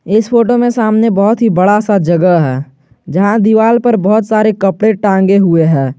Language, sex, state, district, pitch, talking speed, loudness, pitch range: Hindi, male, Jharkhand, Garhwa, 205 Hz, 190 wpm, -10 LUFS, 180-220 Hz